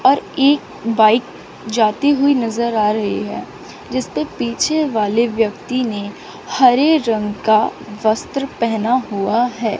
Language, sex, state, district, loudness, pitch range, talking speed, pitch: Hindi, female, Chandigarh, Chandigarh, -17 LUFS, 215-260 Hz, 130 wpm, 230 Hz